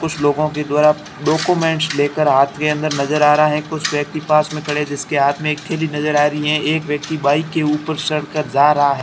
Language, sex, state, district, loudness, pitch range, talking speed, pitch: Hindi, male, Rajasthan, Barmer, -17 LUFS, 145-155 Hz, 240 wpm, 150 Hz